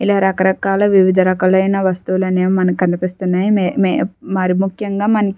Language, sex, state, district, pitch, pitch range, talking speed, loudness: Telugu, female, Andhra Pradesh, Chittoor, 190 Hz, 185-195 Hz, 125 wpm, -15 LUFS